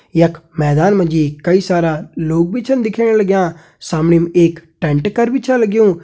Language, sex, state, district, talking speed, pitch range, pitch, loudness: Hindi, male, Uttarakhand, Tehri Garhwal, 180 wpm, 165-215 Hz, 170 Hz, -14 LUFS